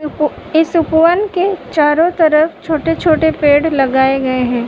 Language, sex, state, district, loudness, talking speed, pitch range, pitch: Hindi, female, Uttar Pradesh, Muzaffarnagar, -13 LUFS, 140 wpm, 290-330 Hz, 315 Hz